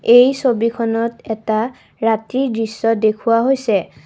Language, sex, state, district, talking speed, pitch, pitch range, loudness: Assamese, female, Assam, Kamrup Metropolitan, 105 wpm, 230 Hz, 220-240 Hz, -17 LUFS